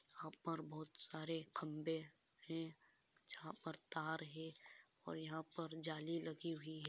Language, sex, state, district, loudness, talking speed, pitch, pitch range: Hindi, female, Andhra Pradesh, Anantapur, -48 LUFS, 150 wpm, 160 Hz, 155-165 Hz